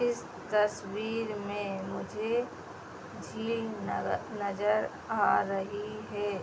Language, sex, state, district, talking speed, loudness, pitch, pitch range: Hindi, female, Uttar Pradesh, Hamirpur, 95 wpm, -32 LUFS, 210 Hz, 200-220 Hz